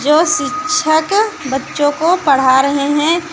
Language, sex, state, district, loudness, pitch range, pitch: Hindi, female, Uttar Pradesh, Lucknow, -14 LUFS, 280-335 Hz, 310 Hz